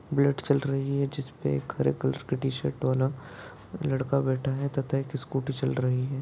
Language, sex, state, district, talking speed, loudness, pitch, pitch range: Hindi, male, Rajasthan, Churu, 185 wpm, -29 LUFS, 135 Hz, 130-140 Hz